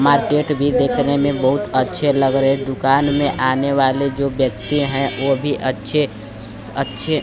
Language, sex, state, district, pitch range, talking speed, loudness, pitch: Hindi, male, Bihar, Kaimur, 130-145 Hz, 155 wpm, -17 LUFS, 135 Hz